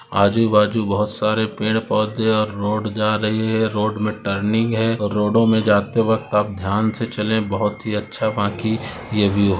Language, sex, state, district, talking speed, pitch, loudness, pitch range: Hindi, female, Rajasthan, Nagaur, 190 wpm, 110 Hz, -19 LUFS, 105-110 Hz